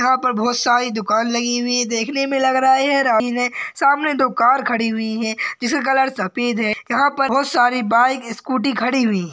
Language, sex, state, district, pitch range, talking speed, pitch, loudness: Hindi, male, Maharashtra, Solapur, 230-270 Hz, 220 wpm, 245 Hz, -18 LUFS